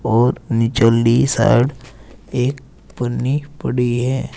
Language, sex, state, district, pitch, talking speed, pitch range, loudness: Hindi, male, Uttar Pradesh, Saharanpur, 125 Hz, 95 wpm, 115-135 Hz, -17 LUFS